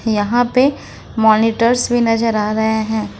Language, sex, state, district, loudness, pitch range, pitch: Hindi, female, Jharkhand, Ranchi, -15 LUFS, 220-240 Hz, 225 Hz